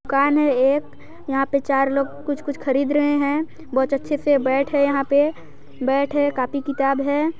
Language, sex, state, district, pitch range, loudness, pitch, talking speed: Hindi, female, Chhattisgarh, Sarguja, 275-290 Hz, -20 LUFS, 280 Hz, 185 wpm